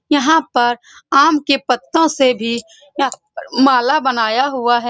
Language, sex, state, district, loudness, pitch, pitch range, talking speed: Hindi, female, Bihar, Saran, -15 LUFS, 265 Hz, 240-290 Hz, 135 wpm